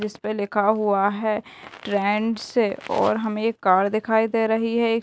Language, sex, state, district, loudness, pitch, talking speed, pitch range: Hindi, female, Bihar, Gopalganj, -22 LUFS, 215 Hz, 180 wpm, 205-225 Hz